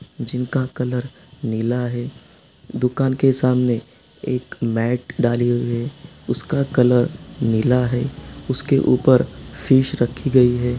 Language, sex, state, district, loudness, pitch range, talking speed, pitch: Hindi, male, Bihar, Sitamarhi, -19 LUFS, 120-135 Hz, 120 wpm, 125 Hz